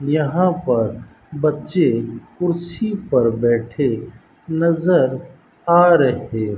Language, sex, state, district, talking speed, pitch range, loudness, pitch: Hindi, male, Rajasthan, Bikaner, 90 wpm, 120-175 Hz, -18 LUFS, 155 Hz